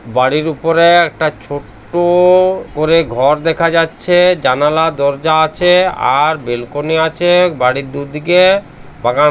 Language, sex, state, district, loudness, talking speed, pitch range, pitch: Bengali, male, West Bengal, Jhargram, -12 LUFS, 115 wpm, 140-175 Hz, 160 Hz